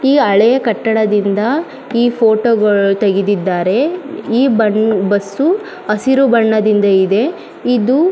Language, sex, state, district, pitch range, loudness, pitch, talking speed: Kannada, female, Karnataka, Mysore, 205-265 Hz, -13 LUFS, 225 Hz, 105 wpm